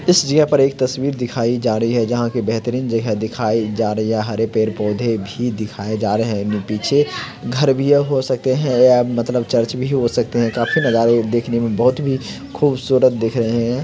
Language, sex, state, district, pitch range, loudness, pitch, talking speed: Hindi, male, Bihar, Samastipur, 115-130 Hz, -17 LUFS, 120 Hz, 215 wpm